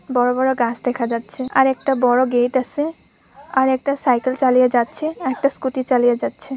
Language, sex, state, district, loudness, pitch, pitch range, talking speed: Bengali, female, West Bengal, Purulia, -18 LUFS, 255 Hz, 245-265 Hz, 155 wpm